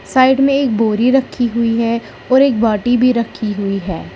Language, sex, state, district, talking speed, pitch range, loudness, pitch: Hindi, female, Uttar Pradesh, Lalitpur, 200 wpm, 225-260 Hz, -15 LUFS, 235 Hz